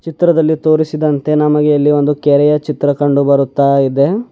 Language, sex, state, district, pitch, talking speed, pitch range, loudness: Kannada, male, Karnataka, Bidar, 150 Hz, 140 wpm, 145-155 Hz, -12 LUFS